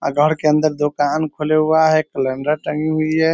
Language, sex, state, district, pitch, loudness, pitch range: Hindi, male, Bihar, Sitamarhi, 155 Hz, -17 LUFS, 150-155 Hz